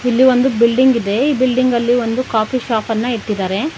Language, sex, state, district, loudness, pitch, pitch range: Kannada, female, Karnataka, Bangalore, -15 LUFS, 245 Hz, 225-255 Hz